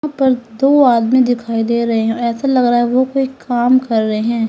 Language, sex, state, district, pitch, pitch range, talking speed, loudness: Hindi, female, Uttar Pradesh, Lalitpur, 240 Hz, 230-260 Hz, 240 wpm, -14 LUFS